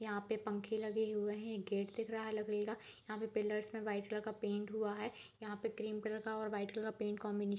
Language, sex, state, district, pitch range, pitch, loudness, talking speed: Hindi, female, Bihar, East Champaran, 210-220 Hz, 215 Hz, -42 LUFS, 270 wpm